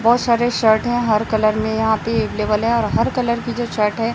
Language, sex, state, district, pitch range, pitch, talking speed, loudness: Hindi, female, Chhattisgarh, Raipur, 220-235 Hz, 225 Hz, 260 wpm, -18 LUFS